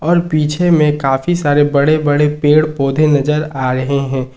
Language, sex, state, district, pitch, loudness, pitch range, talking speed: Hindi, male, Jharkhand, Ranchi, 150 Hz, -13 LUFS, 140-155 Hz, 180 wpm